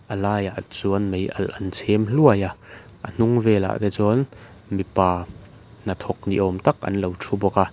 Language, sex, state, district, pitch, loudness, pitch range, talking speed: Mizo, male, Mizoram, Aizawl, 100 Hz, -21 LUFS, 95-110 Hz, 185 wpm